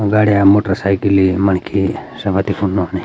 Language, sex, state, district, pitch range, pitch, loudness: Garhwali, male, Uttarakhand, Uttarkashi, 95-100 Hz, 100 Hz, -15 LUFS